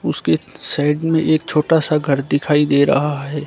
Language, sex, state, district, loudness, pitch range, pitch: Hindi, male, Haryana, Charkhi Dadri, -17 LUFS, 145-155 Hz, 150 Hz